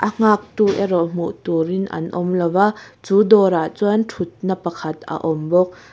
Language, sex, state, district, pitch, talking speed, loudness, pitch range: Mizo, female, Mizoram, Aizawl, 180 Hz, 210 wpm, -19 LUFS, 170-205 Hz